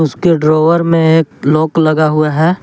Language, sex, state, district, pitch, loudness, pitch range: Hindi, male, Jharkhand, Garhwa, 160 Hz, -11 LUFS, 155-165 Hz